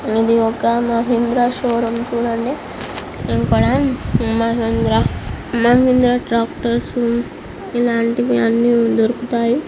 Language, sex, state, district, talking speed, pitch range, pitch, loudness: Telugu, female, Andhra Pradesh, Srikakulam, 75 wpm, 230-240 Hz, 235 Hz, -17 LUFS